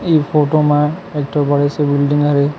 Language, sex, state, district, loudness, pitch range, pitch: Chhattisgarhi, male, Chhattisgarh, Kabirdham, -15 LUFS, 145-150 Hz, 145 Hz